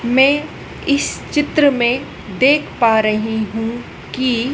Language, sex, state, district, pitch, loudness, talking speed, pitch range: Hindi, female, Madhya Pradesh, Dhar, 250 Hz, -16 LUFS, 120 wpm, 225-280 Hz